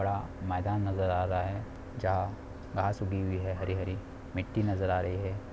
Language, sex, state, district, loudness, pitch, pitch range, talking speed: Hindi, male, Bihar, Samastipur, -33 LUFS, 95 Hz, 90-100 Hz, 195 wpm